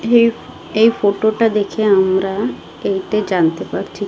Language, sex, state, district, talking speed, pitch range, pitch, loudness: Bengali, female, Odisha, Malkangiri, 115 wpm, 195-225 Hz, 210 Hz, -16 LUFS